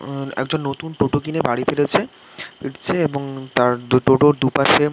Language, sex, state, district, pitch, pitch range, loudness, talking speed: Bengali, male, West Bengal, Kolkata, 140 Hz, 130-155 Hz, -19 LUFS, 170 wpm